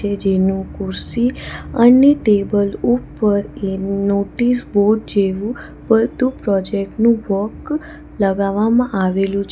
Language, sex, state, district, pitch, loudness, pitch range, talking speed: Gujarati, female, Gujarat, Valsad, 205 Hz, -17 LUFS, 195-235 Hz, 100 wpm